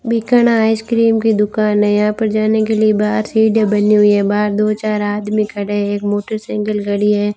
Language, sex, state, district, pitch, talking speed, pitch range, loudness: Hindi, female, Rajasthan, Bikaner, 210 Hz, 195 wpm, 205-220 Hz, -15 LUFS